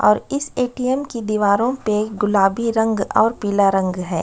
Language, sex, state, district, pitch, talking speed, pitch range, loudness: Hindi, female, Chhattisgarh, Sukma, 215 Hz, 170 wpm, 200-235 Hz, -19 LUFS